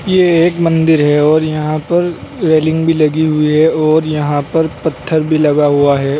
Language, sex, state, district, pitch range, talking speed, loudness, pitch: Hindi, male, Uttar Pradesh, Saharanpur, 150-160 Hz, 195 wpm, -12 LUFS, 155 Hz